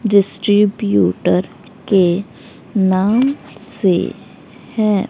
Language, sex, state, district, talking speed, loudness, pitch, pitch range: Hindi, female, Haryana, Rohtak, 60 wpm, -16 LUFS, 200 Hz, 180-215 Hz